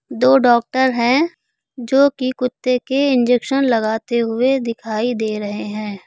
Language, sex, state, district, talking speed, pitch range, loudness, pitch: Hindi, female, Uttar Pradesh, Lucknow, 140 wpm, 225-260 Hz, -17 LUFS, 245 Hz